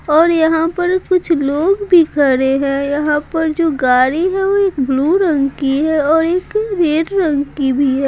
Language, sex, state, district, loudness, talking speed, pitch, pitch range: Hindi, female, Bihar, Patna, -14 LUFS, 195 wpm, 315 Hz, 280-355 Hz